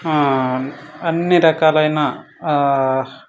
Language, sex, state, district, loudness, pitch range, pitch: Telugu, male, Andhra Pradesh, Guntur, -17 LUFS, 135-160 Hz, 150 Hz